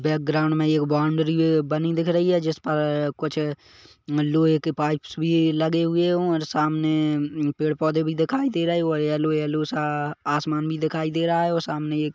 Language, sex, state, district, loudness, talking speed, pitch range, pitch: Hindi, male, Chhattisgarh, Kabirdham, -23 LUFS, 195 wpm, 150-160 Hz, 155 Hz